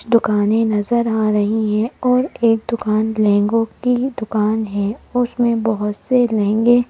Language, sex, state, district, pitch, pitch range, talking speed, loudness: Hindi, female, Madhya Pradesh, Bhopal, 225 Hz, 210-240 Hz, 140 wpm, -17 LUFS